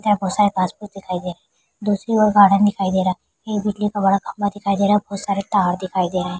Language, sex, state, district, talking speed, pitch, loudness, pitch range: Hindi, female, Bihar, Kishanganj, 270 wpm, 200 Hz, -19 LUFS, 185-205 Hz